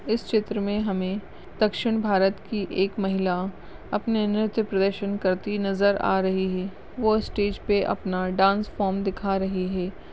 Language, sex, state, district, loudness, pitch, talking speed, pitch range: Hindi, female, Goa, North and South Goa, -25 LUFS, 195 Hz, 155 wpm, 190-210 Hz